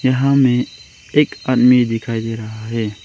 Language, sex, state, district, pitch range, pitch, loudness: Hindi, male, Arunachal Pradesh, Longding, 115-130 Hz, 120 Hz, -16 LUFS